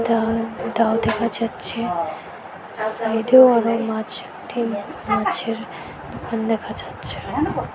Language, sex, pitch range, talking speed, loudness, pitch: Bengali, female, 220-230 Hz, 95 wpm, -21 LUFS, 225 Hz